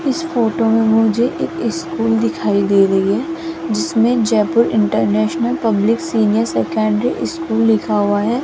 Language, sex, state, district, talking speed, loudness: Hindi, female, Rajasthan, Jaipur, 140 wpm, -16 LUFS